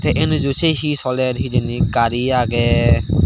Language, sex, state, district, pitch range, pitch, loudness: Chakma, male, Tripura, Dhalai, 120-145 Hz, 130 Hz, -17 LUFS